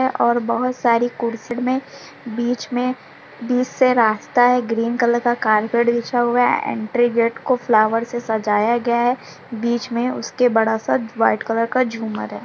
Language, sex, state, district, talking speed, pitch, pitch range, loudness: Hindi, female, Bihar, Sitamarhi, 165 wpm, 235 Hz, 230-245 Hz, -19 LUFS